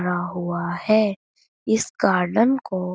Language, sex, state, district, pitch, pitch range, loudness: Hindi, female, Uttar Pradesh, Budaun, 185 Hz, 180-215 Hz, -22 LUFS